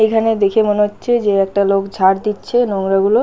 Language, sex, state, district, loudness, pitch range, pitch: Bengali, female, West Bengal, Paschim Medinipur, -15 LUFS, 195-220 Hz, 205 Hz